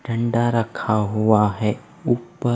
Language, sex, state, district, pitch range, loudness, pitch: Hindi, male, Punjab, Fazilka, 110-120 Hz, -21 LUFS, 115 Hz